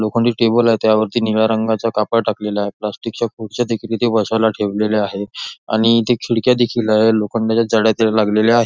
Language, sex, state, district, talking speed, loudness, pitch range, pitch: Marathi, male, Maharashtra, Nagpur, 175 wpm, -16 LUFS, 110-115 Hz, 110 Hz